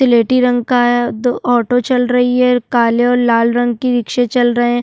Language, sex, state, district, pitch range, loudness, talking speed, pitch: Hindi, female, Uttarakhand, Tehri Garhwal, 240-245 Hz, -13 LUFS, 225 wpm, 245 Hz